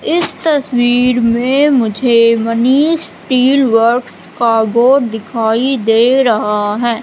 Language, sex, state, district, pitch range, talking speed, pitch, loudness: Hindi, female, Madhya Pradesh, Katni, 230-265 Hz, 110 wpm, 240 Hz, -12 LUFS